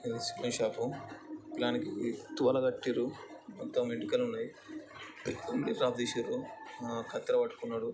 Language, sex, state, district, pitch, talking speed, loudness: Telugu, male, Andhra Pradesh, Chittoor, 310 Hz, 100 wpm, -35 LUFS